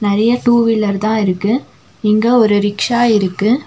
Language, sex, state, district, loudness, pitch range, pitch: Tamil, female, Tamil Nadu, Nilgiris, -14 LUFS, 205-235 Hz, 215 Hz